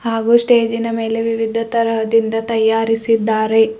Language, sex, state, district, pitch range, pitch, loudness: Kannada, female, Karnataka, Bidar, 225-230 Hz, 225 Hz, -16 LUFS